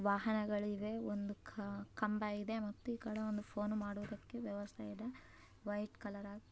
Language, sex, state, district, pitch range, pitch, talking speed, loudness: Kannada, male, Karnataka, Bellary, 205-215 Hz, 210 Hz, 120 wpm, -43 LUFS